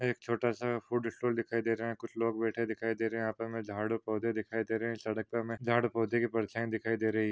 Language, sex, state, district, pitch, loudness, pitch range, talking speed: Hindi, male, Maharashtra, Pune, 115 Hz, -34 LUFS, 110-115 Hz, 320 wpm